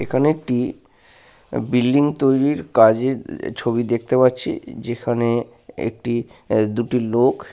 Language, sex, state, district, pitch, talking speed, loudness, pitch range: Bengali, male, West Bengal, Paschim Medinipur, 120 Hz, 110 wpm, -20 LUFS, 120-130 Hz